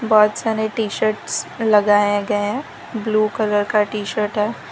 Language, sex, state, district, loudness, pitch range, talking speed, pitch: Hindi, female, Gujarat, Valsad, -19 LUFS, 210-220 Hz, 165 wpm, 215 Hz